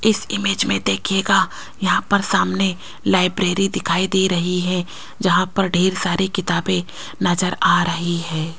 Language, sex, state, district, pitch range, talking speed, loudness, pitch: Hindi, female, Rajasthan, Jaipur, 175-190 Hz, 145 wpm, -19 LUFS, 180 Hz